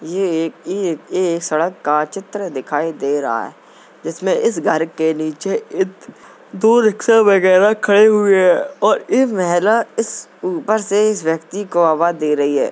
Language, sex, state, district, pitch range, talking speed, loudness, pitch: Hindi, male, Uttar Pradesh, Jalaun, 160-215 Hz, 160 wpm, -16 LUFS, 185 Hz